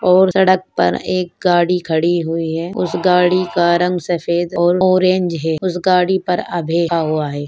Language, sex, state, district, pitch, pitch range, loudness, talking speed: Hindi, female, Uttar Pradesh, Ghazipur, 175 Hz, 170-185 Hz, -16 LUFS, 200 wpm